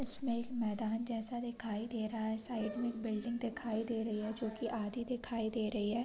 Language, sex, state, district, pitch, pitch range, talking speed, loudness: Hindi, female, Uttar Pradesh, Deoria, 225 Hz, 220-235 Hz, 230 wpm, -38 LUFS